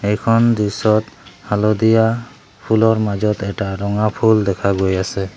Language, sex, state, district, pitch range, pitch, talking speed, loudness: Assamese, male, Assam, Sonitpur, 100-110 Hz, 105 Hz, 125 wpm, -17 LUFS